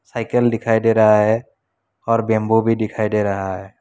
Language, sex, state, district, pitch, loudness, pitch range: Hindi, male, Assam, Kamrup Metropolitan, 110 Hz, -18 LUFS, 105-115 Hz